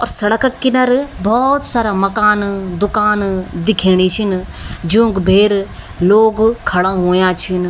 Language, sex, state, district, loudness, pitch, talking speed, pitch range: Garhwali, female, Uttarakhand, Tehri Garhwal, -14 LUFS, 205 Hz, 115 wpm, 185-225 Hz